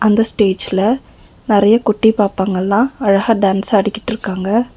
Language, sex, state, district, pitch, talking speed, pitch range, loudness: Tamil, female, Tamil Nadu, Nilgiris, 210 Hz, 115 wpm, 195-225 Hz, -15 LUFS